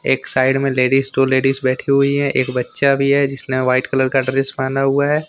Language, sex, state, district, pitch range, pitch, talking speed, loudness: Hindi, male, Jharkhand, Deoghar, 130-140 Hz, 135 Hz, 240 wpm, -16 LUFS